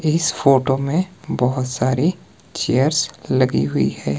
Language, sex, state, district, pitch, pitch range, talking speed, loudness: Hindi, male, Himachal Pradesh, Shimla, 140 Hz, 130-160 Hz, 130 wpm, -19 LUFS